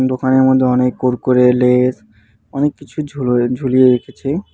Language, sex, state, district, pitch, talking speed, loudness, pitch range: Bengali, male, West Bengal, Alipurduar, 130 Hz, 130 wpm, -14 LUFS, 125-130 Hz